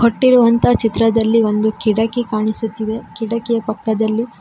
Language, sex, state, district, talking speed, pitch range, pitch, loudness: Kannada, female, Karnataka, Koppal, 95 wpm, 220-230 Hz, 225 Hz, -16 LUFS